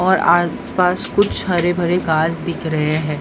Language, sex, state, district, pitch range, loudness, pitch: Hindi, male, Maharashtra, Mumbai Suburban, 160-180 Hz, -17 LUFS, 175 Hz